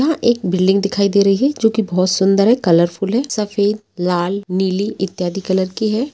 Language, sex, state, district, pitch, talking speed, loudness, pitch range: Hindi, female, Uttarakhand, Tehri Garhwal, 195 Hz, 205 wpm, -16 LUFS, 185-220 Hz